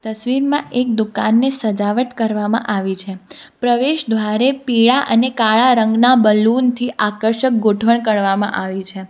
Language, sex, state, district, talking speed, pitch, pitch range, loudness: Gujarati, female, Gujarat, Valsad, 130 wpm, 225 Hz, 210-250 Hz, -16 LUFS